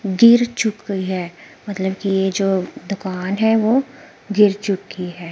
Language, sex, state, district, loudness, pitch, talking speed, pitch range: Hindi, female, Himachal Pradesh, Shimla, -18 LUFS, 200 Hz, 145 wpm, 190-220 Hz